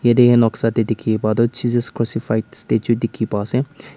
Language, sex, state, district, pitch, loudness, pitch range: Nagamese, male, Nagaland, Kohima, 115 Hz, -18 LUFS, 110-120 Hz